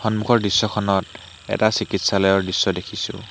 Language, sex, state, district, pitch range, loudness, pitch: Assamese, male, Assam, Hailakandi, 95-110 Hz, -20 LUFS, 105 Hz